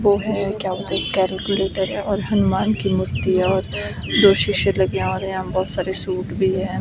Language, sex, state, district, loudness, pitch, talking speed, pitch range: Hindi, female, Himachal Pradesh, Shimla, -20 LUFS, 190 Hz, 205 wpm, 190-200 Hz